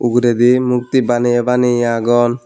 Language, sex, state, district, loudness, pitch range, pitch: Chakma, male, Tripura, Unakoti, -14 LUFS, 120-125 Hz, 120 Hz